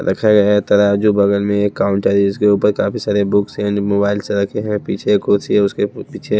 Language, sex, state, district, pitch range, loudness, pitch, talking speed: Hindi, male, Himachal Pradesh, Shimla, 100-105 Hz, -15 LUFS, 100 Hz, 215 wpm